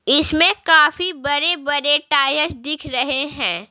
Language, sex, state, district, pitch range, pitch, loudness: Hindi, female, Bihar, Patna, 280-320 Hz, 290 Hz, -16 LUFS